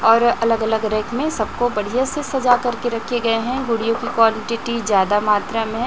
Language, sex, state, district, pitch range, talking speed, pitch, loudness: Hindi, female, Chhattisgarh, Raipur, 220-245 Hz, 205 wpm, 230 Hz, -19 LUFS